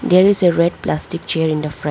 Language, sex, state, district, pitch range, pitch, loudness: English, female, Arunachal Pradesh, Lower Dibang Valley, 150-180 Hz, 160 Hz, -16 LUFS